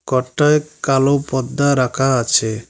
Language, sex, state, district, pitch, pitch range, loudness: Bengali, male, West Bengal, Cooch Behar, 135 Hz, 125-140 Hz, -16 LUFS